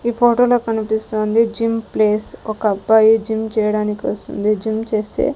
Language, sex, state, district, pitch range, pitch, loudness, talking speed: Telugu, female, Andhra Pradesh, Sri Satya Sai, 215-225 Hz, 220 Hz, -17 LUFS, 155 wpm